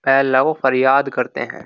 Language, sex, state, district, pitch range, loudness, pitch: Hindi, male, Uttar Pradesh, Jyotiba Phule Nagar, 130-135 Hz, -16 LUFS, 135 Hz